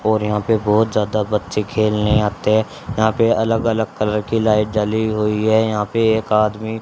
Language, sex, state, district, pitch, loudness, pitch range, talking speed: Hindi, male, Haryana, Charkhi Dadri, 110 Hz, -18 LUFS, 105-110 Hz, 200 wpm